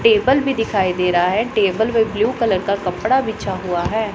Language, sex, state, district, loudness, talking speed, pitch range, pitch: Hindi, male, Punjab, Pathankot, -18 LUFS, 215 wpm, 185-230 Hz, 215 Hz